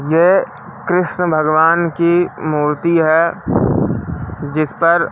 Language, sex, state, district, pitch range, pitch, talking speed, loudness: Hindi, male, Madhya Pradesh, Katni, 155-170 Hz, 165 Hz, 95 wpm, -15 LUFS